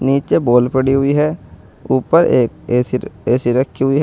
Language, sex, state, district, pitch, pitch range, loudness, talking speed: Hindi, male, Uttar Pradesh, Saharanpur, 130 Hz, 120-140 Hz, -15 LUFS, 195 wpm